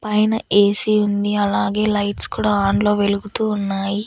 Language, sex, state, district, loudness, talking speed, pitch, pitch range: Telugu, female, Andhra Pradesh, Annamaya, -18 LUFS, 135 wpm, 205 Hz, 200-210 Hz